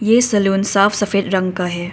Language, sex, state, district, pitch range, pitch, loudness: Hindi, female, Arunachal Pradesh, Papum Pare, 185-205 Hz, 200 Hz, -16 LUFS